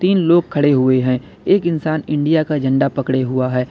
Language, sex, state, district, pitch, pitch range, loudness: Hindi, male, Uttar Pradesh, Lalitpur, 145 Hz, 130-160 Hz, -16 LUFS